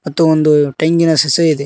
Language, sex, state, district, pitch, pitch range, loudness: Kannada, male, Karnataka, Koppal, 155 Hz, 150-165 Hz, -12 LUFS